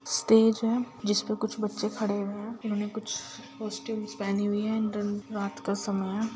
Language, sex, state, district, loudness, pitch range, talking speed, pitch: Hindi, female, Chhattisgarh, Kabirdham, -29 LUFS, 205-220 Hz, 180 wpm, 215 Hz